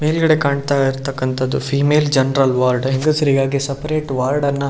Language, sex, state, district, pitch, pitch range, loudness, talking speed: Kannada, male, Karnataka, Shimoga, 140 Hz, 135-145 Hz, -17 LUFS, 140 wpm